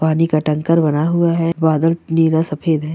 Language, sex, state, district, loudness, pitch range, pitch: Hindi, female, Bihar, Bhagalpur, -16 LUFS, 155-165 Hz, 160 Hz